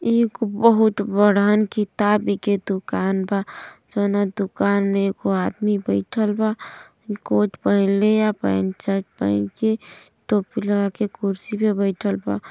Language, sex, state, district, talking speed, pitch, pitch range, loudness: Bhojpuri, female, Uttar Pradesh, Gorakhpur, 135 wpm, 200 Hz, 195-210 Hz, -21 LUFS